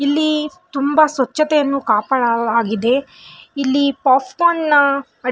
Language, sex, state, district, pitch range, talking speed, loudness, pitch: Kannada, female, Karnataka, Belgaum, 260-300 Hz, 80 wpm, -16 LUFS, 275 Hz